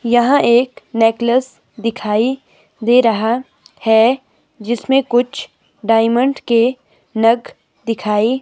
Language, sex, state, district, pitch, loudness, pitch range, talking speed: Hindi, female, Himachal Pradesh, Shimla, 235 Hz, -15 LUFS, 225-250 Hz, 95 wpm